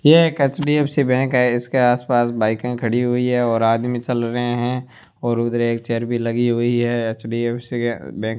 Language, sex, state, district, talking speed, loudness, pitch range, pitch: Hindi, male, Rajasthan, Bikaner, 195 wpm, -19 LUFS, 115-125 Hz, 120 Hz